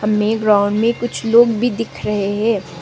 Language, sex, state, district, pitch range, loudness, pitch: Hindi, female, Sikkim, Gangtok, 205-230 Hz, -16 LUFS, 215 Hz